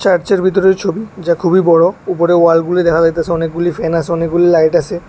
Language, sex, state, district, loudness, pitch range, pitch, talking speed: Bengali, male, Tripura, West Tripura, -13 LUFS, 165-185 Hz, 170 Hz, 200 wpm